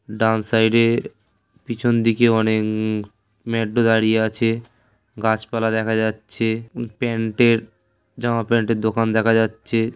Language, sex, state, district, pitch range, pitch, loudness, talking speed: Bengali, male, West Bengal, Paschim Medinipur, 110-115 Hz, 110 Hz, -20 LUFS, 110 wpm